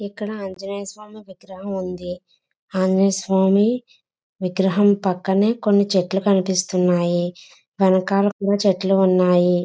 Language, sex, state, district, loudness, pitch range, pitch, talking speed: Telugu, female, Andhra Pradesh, Visakhapatnam, -19 LUFS, 185-200 Hz, 190 Hz, 95 wpm